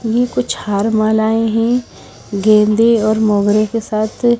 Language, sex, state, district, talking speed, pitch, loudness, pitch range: Hindi, female, Himachal Pradesh, Shimla, 135 wpm, 220 Hz, -14 LUFS, 210-230 Hz